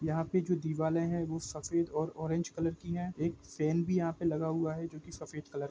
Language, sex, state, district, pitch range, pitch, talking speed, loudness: Hindi, male, Jharkhand, Jamtara, 155-170 Hz, 165 Hz, 275 wpm, -34 LUFS